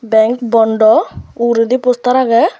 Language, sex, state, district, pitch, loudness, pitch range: Chakma, male, Tripura, Unakoti, 235 Hz, -12 LUFS, 225-255 Hz